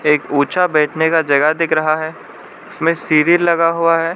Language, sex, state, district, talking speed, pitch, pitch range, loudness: Hindi, male, Arunachal Pradesh, Lower Dibang Valley, 185 wpm, 160 Hz, 155-165 Hz, -15 LUFS